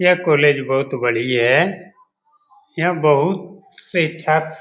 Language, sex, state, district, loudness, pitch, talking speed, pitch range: Hindi, male, Bihar, Jamui, -17 LUFS, 165 Hz, 130 wpm, 145-185 Hz